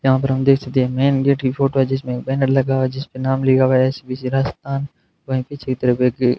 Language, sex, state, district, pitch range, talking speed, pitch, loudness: Hindi, male, Rajasthan, Bikaner, 130-135 Hz, 235 wpm, 130 Hz, -18 LUFS